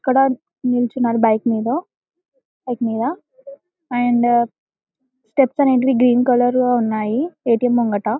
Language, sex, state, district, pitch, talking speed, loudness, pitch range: Telugu, female, Telangana, Karimnagar, 245 Hz, 110 wpm, -18 LUFS, 235-265 Hz